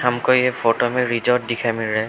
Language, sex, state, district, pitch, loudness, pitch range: Hindi, male, Arunachal Pradesh, Lower Dibang Valley, 120 Hz, -19 LUFS, 115-125 Hz